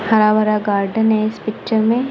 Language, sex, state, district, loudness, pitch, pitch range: Hindi, female, Punjab, Kapurthala, -17 LUFS, 215 Hz, 215-220 Hz